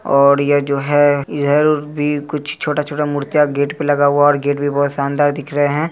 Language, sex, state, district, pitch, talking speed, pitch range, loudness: Hindi, male, Bihar, Araria, 145 Hz, 215 wpm, 140-150 Hz, -16 LUFS